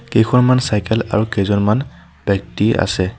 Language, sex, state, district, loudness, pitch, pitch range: Assamese, male, Assam, Sonitpur, -16 LUFS, 105 Hz, 100-115 Hz